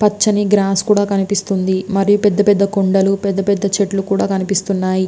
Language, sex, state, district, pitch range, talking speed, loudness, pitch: Telugu, female, Andhra Pradesh, Visakhapatnam, 195-205 Hz, 155 wpm, -15 LUFS, 200 Hz